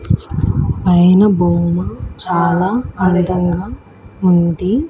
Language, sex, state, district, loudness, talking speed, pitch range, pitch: Telugu, female, Andhra Pradesh, Annamaya, -14 LUFS, 60 wpm, 170-185 Hz, 180 Hz